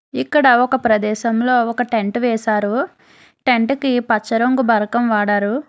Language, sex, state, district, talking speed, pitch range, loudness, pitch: Telugu, female, Telangana, Hyderabad, 125 wpm, 220-255 Hz, -17 LUFS, 235 Hz